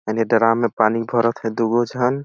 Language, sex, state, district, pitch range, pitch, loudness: Awadhi, male, Chhattisgarh, Balrampur, 115-120 Hz, 115 Hz, -19 LUFS